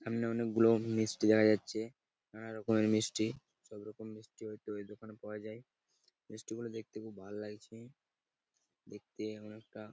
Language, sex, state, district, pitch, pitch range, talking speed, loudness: Bengali, male, West Bengal, Purulia, 110 Hz, 105-110 Hz, 150 wpm, -35 LUFS